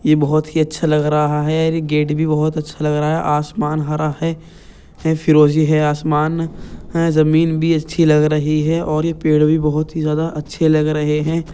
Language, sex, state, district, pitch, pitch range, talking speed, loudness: Hindi, male, Uttar Pradesh, Jyotiba Phule Nagar, 155 Hz, 150-160 Hz, 180 wpm, -17 LUFS